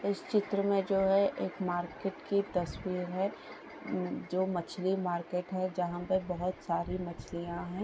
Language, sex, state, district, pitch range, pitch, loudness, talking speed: Hindi, female, Bihar, Jamui, 175-195 Hz, 185 Hz, -33 LUFS, 155 wpm